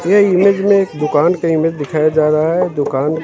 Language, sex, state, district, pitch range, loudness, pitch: Hindi, male, Haryana, Jhajjar, 155-185 Hz, -14 LUFS, 160 Hz